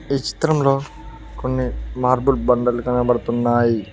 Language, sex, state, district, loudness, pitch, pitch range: Telugu, male, Telangana, Mahabubabad, -19 LUFS, 125 Hz, 120-135 Hz